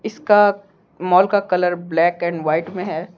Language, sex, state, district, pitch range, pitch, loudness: Hindi, male, Jharkhand, Deoghar, 175-195 Hz, 180 Hz, -18 LUFS